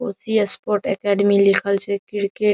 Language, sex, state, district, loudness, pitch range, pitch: Maithili, male, Bihar, Saharsa, -18 LUFS, 200-205 Hz, 200 Hz